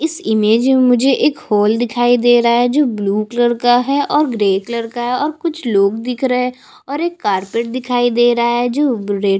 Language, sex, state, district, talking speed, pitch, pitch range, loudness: Hindi, female, Chhattisgarh, Bastar, 235 wpm, 240 Hz, 225-260 Hz, -15 LUFS